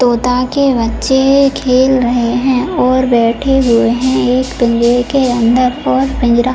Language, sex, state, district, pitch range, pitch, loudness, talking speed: Hindi, female, Bihar, Purnia, 240-265 Hz, 250 Hz, -12 LUFS, 165 wpm